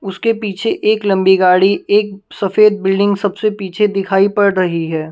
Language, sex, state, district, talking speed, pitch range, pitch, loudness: Hindi, female, Punjab, Kapurthala, 175 wpm, 190-210 Hz, 200 Hz, -14 LUFS